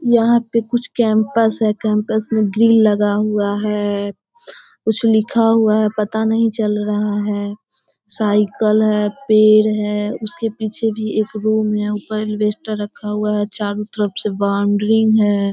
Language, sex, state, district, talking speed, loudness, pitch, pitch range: Hindi, female, Bihar, Sitamarhi, 155 wpm, -17 LUFS, 215 Hz, 210-220 Hz